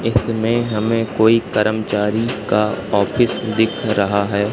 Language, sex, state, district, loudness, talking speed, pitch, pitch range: Hindi, male, Madhya Pradesh, Katni, -18 LUFS, 120 wpm, 110 Hz, 105-115 Hz